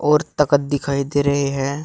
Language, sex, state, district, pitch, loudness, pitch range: Hindi, male, Uttar Pradesh, Shamli, 145 Hz, -19 LUFS, 140-150 Hz